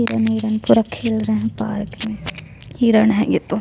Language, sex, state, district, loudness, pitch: Hindi, female, Chhattisgarh, Jashpur, -19 LUFS, 215 Hz